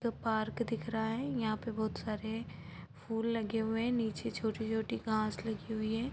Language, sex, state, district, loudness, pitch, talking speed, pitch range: Hindi, female, Bihar, Sitamarhi, -36 LUFS, 220 Hz, 175 wpm, 220-230 Hz